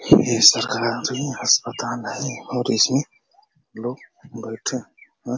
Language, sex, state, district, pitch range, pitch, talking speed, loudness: Hindi, male, Uttar Pradesh, Ghazipur, 115-145 Hz, 125 Hz, 100 wpm, -20 LUFS